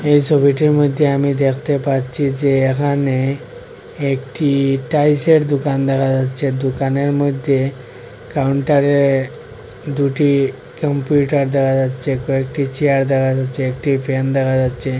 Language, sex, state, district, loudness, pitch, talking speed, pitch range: Bengali, male, Assam, Hailakandi, -16 LUFS, 135 Hz, 120 wpm, 135-145 Hz